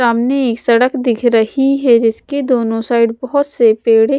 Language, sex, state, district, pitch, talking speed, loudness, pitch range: Hindi, female, Odisha, Sambalpur, 240 Hz, 155 wpm, -13 LUFS, 230-265 Hz